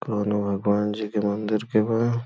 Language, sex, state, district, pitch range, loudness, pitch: Bhojpuri, male, Uttar Pradesh, Gorakhpur, 105-110 Hz, -24 LUFS, 105 Hz